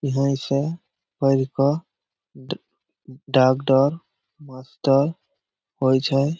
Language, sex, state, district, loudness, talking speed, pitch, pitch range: Maithili, male, Bihar, Samastipur, -21 LUFS, 95 wpm, 135 Hz, 130-145 Hz